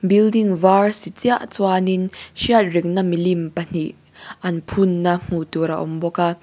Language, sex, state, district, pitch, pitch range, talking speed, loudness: Mizo, female, Mizoram, Aizawl, 180 Hz, 170-195 Hz, 170 wpm, -19 LUFS